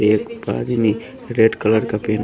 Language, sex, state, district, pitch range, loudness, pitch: Hindi, male, Haryana, Rohtak, 105-110 Hz, -19 LUFS, 110 Hz